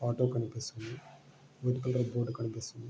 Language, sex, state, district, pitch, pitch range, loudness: Telugu, male, Andhra Pradesh, Srikakulam, 120 Hz, 115-125 Hz, -35 LUFS